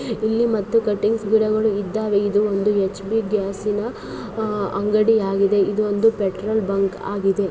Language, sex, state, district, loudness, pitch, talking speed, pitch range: Kannada, female, Karnataka, Raichur, -20 LUFS, 210 Hz, 145 wpm, 200-220 Hz